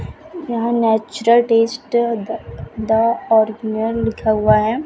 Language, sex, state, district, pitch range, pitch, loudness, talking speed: Hindi, female, Chhattisgarh, Raipur, 220-235 Hz, 225 Hz, -17 LUFS, 110 wpm